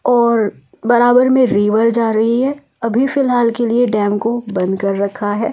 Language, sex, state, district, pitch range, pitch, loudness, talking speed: Hindi, female, Delhi, New Delhi, 210-245 Hz, 230 Hz, -15 LUFS, 195 wpm